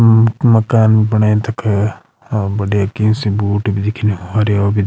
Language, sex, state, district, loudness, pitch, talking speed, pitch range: Garhwali, male, Uttarakhand, Uttarkashi, -15 LUFS, 105 Hz, 160 wpm, 100-110 Hz